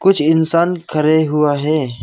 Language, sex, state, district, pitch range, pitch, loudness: Hindi, male, Arunachal Pradesh, Lower Dibang Valley, 150-165 Hz, 155 Hz, -15 LUFS